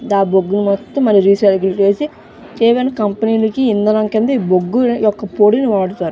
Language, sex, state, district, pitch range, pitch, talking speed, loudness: Telugu, female, Andhra Pradesh, Visakhapatnam, 200-235 Hz, 210 Hz, 120 wpm, -14 LUFS